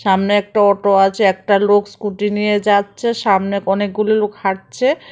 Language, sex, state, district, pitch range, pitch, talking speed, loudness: Bengali, female, Tripura, West Tripura, 200-210 Hz, 205 Hz, 150 wpm, -16 LUFS